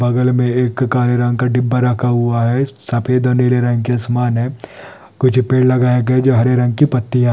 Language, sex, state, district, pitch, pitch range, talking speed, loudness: Hindi, male, Andhra Pradesh, Anantapur, 125 Hz, 120-125 Hz, 205 wpm, -15 LUFS